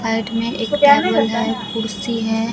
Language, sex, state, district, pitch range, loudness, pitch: Hindi, female, Bihar, Katihar, 225-235 Hz, -18 LUFS, 225 Hz